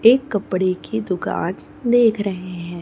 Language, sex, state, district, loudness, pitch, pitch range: Hindi, female, Chhattisgarh, Raipur, -20 LUFS, 200 Hz, 185-230 Hz